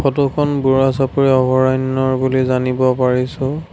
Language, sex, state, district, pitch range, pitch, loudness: Assamese, male, Assam, Sonitpur, 130-135 Hz, 130 Hz, -16 LUFS